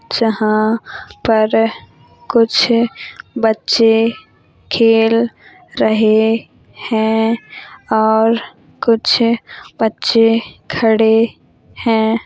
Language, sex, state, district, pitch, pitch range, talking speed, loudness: Hindi, female, Uttar Pradesh, Jalaun, 225 Hz, 220-230 Hz, 60 wpm, -15 LUFS